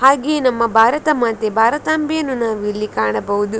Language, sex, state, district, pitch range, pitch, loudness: Kannada, female, Karnataka, Dakshina Kannada, 215-290 Hz, 230 Hz, -16 LUFS